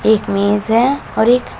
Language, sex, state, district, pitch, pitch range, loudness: Hindi, female, Uttar Pradesh, Shamli, 220 Hz, 205-245 Hz, -15 LUFS